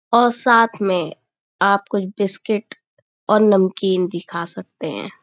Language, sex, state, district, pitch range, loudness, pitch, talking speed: Hindi, female, Uttar Pradesh, Budaun, 185-220 Hz, -18 LUFS, 200 Hz, 135 wpm